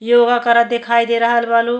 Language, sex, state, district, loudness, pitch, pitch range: Bhojpuri, female, Uttar Pradesh, Deoria, -14 LUFS, 235 Hz, 235-240 Hz